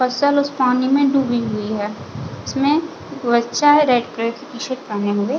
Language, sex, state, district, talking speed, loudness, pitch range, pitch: Hindi, female, Chhattisgarh, Bilaspur, 200 wpm, -18 LUFS, 230-280 Hz, 250 Hz